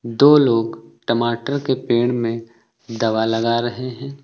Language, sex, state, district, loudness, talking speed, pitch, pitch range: Hindi, male, Uttar Pradesh, Lucknow, -19 LUFS, 140 wpm, 120 Hz, 115-130 Hz